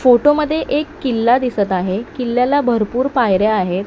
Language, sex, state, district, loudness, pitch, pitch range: Marathi, male, Maharashtra, Mumbai Suburban, -16 LUFS, 245 Hz, 215-280 Hz